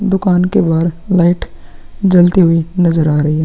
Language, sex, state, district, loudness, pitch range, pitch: Hindi, female, Bihar, Vaishali, -12 LUFS, 165-185 Hz, 175 Hz